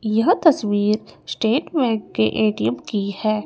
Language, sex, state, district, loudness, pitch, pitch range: Hindi, female, Chandigarh, Chandigarh, -20 LUFS, 215 Hz, 195-230 Hz